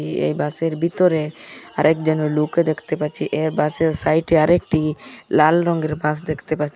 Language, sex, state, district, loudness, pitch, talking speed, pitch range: Bengali, male, Assam, Hailakandi, -19 LUFS, 155 Hz, 150 wpm, 150-160 Hz